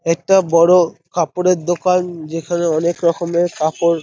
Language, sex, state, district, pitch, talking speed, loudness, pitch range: Bengali, male, West Bengal, North 24 Parganas, 170 Hz, 135 wpm, -16 LUFS, 165-180 Hz